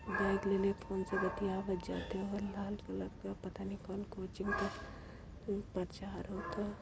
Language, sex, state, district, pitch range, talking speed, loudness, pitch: Awadhi, female, Uttar Pradesh, Varanasi, 185-205 Hz, 175 wpm, -40 LUFS, 195 Hz